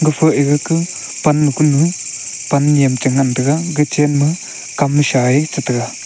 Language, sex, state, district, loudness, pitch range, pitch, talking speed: Wancho, male, Arunachal Pradesh, Longding, -15 LUFS, 140-155 Hz, 145 Hz, 160 wpm